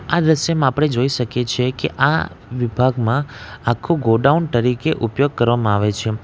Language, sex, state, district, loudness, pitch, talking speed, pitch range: Gujarati, male, Gujarat, Valsad, -18 LUFS, 125 Hz, 155 wpm, 115-145 Hz